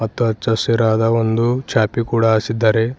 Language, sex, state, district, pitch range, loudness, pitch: Kannada, male, Karnataka, Bidar, 110-115 Hz, -17 LUFS, 115 Hz